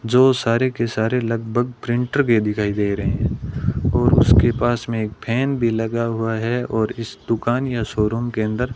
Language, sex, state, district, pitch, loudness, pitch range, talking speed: Hindi, male, Rajasthan, Bikaner, 115 Hz, -20 LUFS, 110-125 Hz, 200 wpm